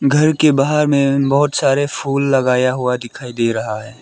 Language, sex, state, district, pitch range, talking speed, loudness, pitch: Hindi, male, Arunachal Pradesh, Lower Dibang Valley, 125-145 Hz, 195 wpm, -16 LUFS, 135 Hz